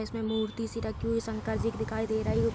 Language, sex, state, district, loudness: Hindi, female, Uttar Pradesh, Hamirpur, -32 LUFS